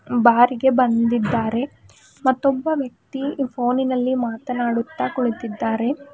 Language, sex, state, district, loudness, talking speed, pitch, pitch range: Kannada, female, Karnataka, Bidar, -21 LUFS, 70 wpm, 250 Hz, 235-265 Hz